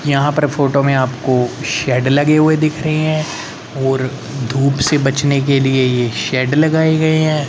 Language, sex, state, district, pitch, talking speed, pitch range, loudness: Hindi, male, Haryana, Rohtak, 140 Hz, 175 wpm, 135-155 Hz, -15 LUFS